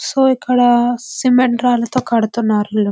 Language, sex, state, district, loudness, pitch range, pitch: Telugu, female, Andhra Pradesh, Visakhapatnam, -15 LUFS, 230-250 Hz, 240 Hz